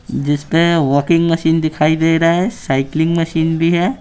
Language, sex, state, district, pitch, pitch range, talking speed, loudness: Hindi, male, Bihar, Patna, 165 Hz, 155-165 Hz, 180 wpm, -15 LUFS